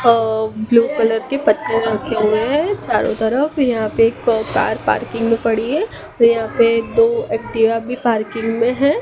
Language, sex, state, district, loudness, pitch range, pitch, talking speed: Hindi, male, Gujarat, Gandhinagar, -17 LUFS, 225-245 Hz, 230 Hz, 175 wpm